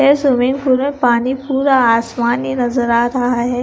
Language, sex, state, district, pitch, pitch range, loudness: Hindi, female, Punjab, Kapurthala, 250 Hz, 240-265 Hz, -15 LUFS